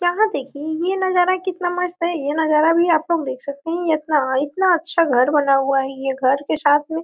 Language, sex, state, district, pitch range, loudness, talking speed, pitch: Hindi, female, Jharkhand, Sahebganj, 280-350 Hz, -19 LUFS, 220 wpm, 315 Hz